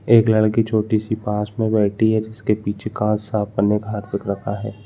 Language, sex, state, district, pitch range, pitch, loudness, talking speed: Hindi, male, Chhattisgarh, Balrampur, 105-110 Hz, 105 Hz, -20 LUFS, 220 wpm